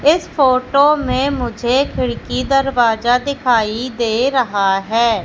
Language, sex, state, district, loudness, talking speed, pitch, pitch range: Hindi, female, Madhya Pradesh, Katni, -16 LUFS, 115 wpm, 255 Hz, 230-275 Hz